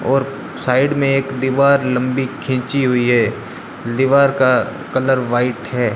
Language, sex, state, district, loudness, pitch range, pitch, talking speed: Hindi, male, Rajasthan, Bikaner, -16 LUFS, 125-135 Hz, 130 Hz, 140 wpm